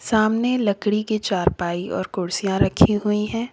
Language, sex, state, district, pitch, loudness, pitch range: Hindi, female, Uttar Pradesh, Lalitpur, 210 Hz, -21 LUFS, 185-220 Hz